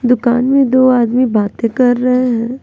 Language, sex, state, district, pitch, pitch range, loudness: Hindi, female, Bihar, West Champaran, 250 Hz, 240-255 Hz, -13 LUFS